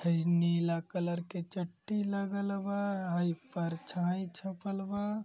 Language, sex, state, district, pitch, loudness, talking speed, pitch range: Hindi, male, Uttar Pradesh, Gorakhpur, 180 Hz, -34 LUFS, 125 wpm, 170-200 Hz